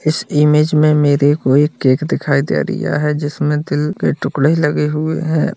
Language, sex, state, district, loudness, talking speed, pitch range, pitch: Hindi, male, Bihar, Jahanabad, -15 LUFS, 195 wpm, 145-155 Hz, 150 Hz